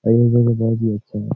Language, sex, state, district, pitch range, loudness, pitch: Hindi, male, Uttar Pradesh, Etah, 110-120 Hz, -17 LUFS, 115 Hz